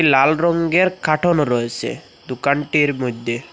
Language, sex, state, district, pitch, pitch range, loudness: Bengali, male, Assam, Hailakandi, 145 Hz, 125-165 Hz, -18 LUFS